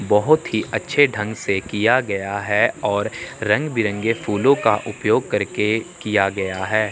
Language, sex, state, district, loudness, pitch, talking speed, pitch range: Hindi, male, Chandigarh, Chandigarh, -20 LUFS, 105 Hz, 155 wpm, 100-115 Hz